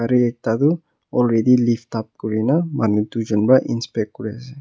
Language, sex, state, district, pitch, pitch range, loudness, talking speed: Nagamese, male, Nagaland, Kohima, 120 Hz, 110-130 Hz, -19 LUFS, 170 wpm